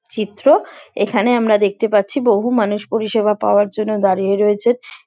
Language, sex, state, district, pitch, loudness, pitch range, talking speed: Bengali, female, West Bengal, Dakshin Dinajpur, 210 Hz, -16 LUFS, 205-230 Hz, 155 wpm